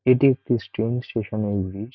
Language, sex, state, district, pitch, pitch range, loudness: Bengali, male, West Bengal, North 24 Parganas, 115 Hz, 105-125 Hz, -23 LUFS